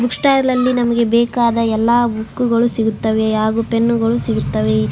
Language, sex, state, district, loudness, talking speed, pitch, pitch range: Kannada, female, Karnataka, Raichur, -16 LUFS, 145 wpm, 230 Hz, 220-240 Hz